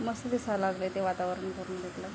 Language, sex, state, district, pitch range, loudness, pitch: Marathi, female, Maharashtra, Aurangabad, 185-215 Hz, -33 LUFS, 190 Hz